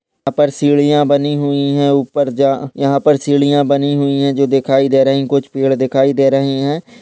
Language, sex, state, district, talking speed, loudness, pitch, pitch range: Hindi, male, Maharashtra, Aurangabad, 205 wpm, -14 LUFS, 140 Hz, 135-145 Hz